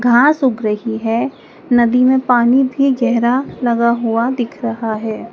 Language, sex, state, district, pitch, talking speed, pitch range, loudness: Hindi, female, Madhya Pradesh, Dhar, 240 Hz, 155 wpm, 230-255 Hz, -15 LUFS